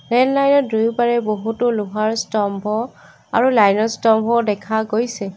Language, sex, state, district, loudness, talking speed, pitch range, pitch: Assamese, female, Assam, Kamrup Metropolitan, -18 LUFS, 125 wpm, 215-240 Hz, 225 Hz